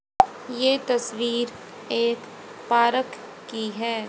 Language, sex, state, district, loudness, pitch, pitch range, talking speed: Hindi, female, Haryana, Charkhi Dadri, -24 LUFS, 240 Hz, 235-250 Hz, 90 wpm